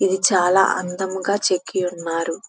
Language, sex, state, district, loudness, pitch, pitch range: Telugu, female, Andhra Pradesh, Krishna, -20 LUFS, 190 Hz, 180-195 Hz